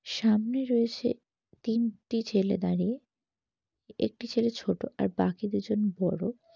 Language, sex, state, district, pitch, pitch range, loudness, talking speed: Bengali, female, West Bengal, Jalpaiguri, 220 Hz, 200-235 Hz, -30 LUFS, 110 wpm